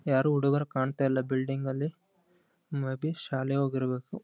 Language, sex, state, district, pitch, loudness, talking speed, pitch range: Kannada, male, Karnataka, Gulbarga, 140 Hz, -30 LUFS, 140 wpm, 130-155 Hz